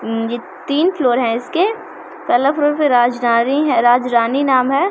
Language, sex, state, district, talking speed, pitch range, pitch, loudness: Maithili, female, Bihar, Samastipur, 170 wpm, 240-305 Hz, 260 Hz, -15 LUFS